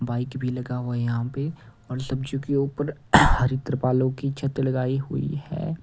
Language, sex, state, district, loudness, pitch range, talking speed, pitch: Hindi, male, Odisha, Nuapada, -25 LUFS, 125-140 Hz, 185 wpm, 130 Hz